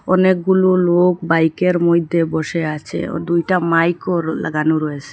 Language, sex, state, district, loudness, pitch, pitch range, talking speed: Bengali, female, Assam, Hailakandi, -17 LUFS, 170 Hz, 160-180 Hz, 130 wpm